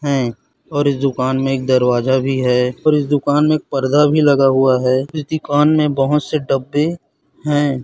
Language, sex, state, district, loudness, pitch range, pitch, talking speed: Hindi, male, Chhattisgarh, Raipur, -16 LUFS, 130-150 Hz, 140 Hz, 200 wpm